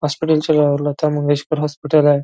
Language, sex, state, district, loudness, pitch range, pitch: Marathi, male, Maharashtra, Nagpur, -17 LUFS, 145-155 Hz, 150 Hz